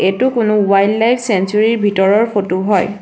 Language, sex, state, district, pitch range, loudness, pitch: Assamese, female, Assam, Sonitpur, 195-225 Hz, -14 LUFS, 205 Hz